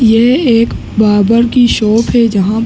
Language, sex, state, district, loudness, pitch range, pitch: Hindi, male, Uttar Pradesh, Ghazipur, -10 LUFS, 215-240 Hz, 230 Hz